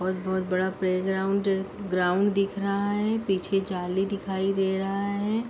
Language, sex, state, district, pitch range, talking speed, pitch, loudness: Hindi, female, Uttar Pradesh, Deoria, 185-200 Hz, 140 wpm, 195 Hz, -27 LUFS